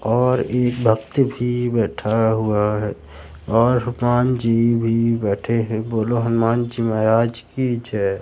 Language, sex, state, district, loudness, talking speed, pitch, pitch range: Hindi, male, Madhya Pradesh, Katni, -19 LUFS, 140 wpm, 115 Hz, 110-120 Hz